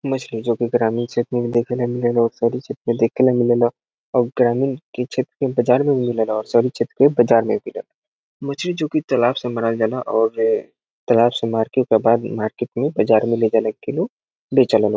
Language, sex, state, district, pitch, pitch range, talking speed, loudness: Bhojpuri, male, Bihar, Saran, 120 Hz, 115-135 Hz, 215 wpm, -19 LUFS